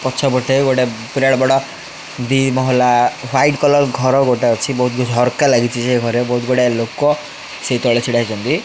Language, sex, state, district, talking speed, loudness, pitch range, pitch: Odia, male, Odisha, Khordha, 160 wpm, -15 LUFS, 120-135 Hz, 125 Hz